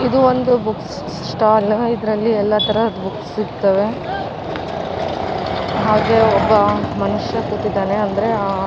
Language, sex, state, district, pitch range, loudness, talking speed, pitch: Kannada, female, Karnataka, Raichur, 200-225 Hz, -17 LUFS, 110 wpm, 215 Hz